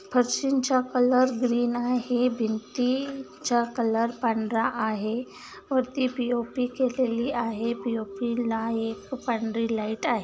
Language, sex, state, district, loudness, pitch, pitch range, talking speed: Marathi, female, Maharashtra, Solapur, -26 LUFS, 240 Hz, 225-255 Hz, 110 wpm